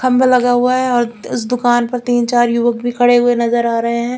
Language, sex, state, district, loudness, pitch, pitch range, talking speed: Hindi, female, Chandigarh, Chandigarh, -14 LUFS, 245 Hz, 235-245 Hz, 260 wpm